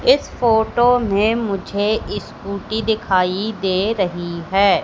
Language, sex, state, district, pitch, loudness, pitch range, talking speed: Hindi, female, Madhya Pradesh, Katni, 205 Hz, -19 LUFS, 190-220 Hz, 110 wpm